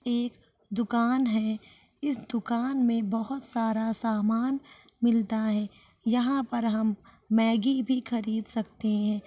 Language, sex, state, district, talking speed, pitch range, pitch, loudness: Hindi, female, Bihar, Saharsa, 125 wpm, 220-240 Hz, 230 Hz, -28 LUFS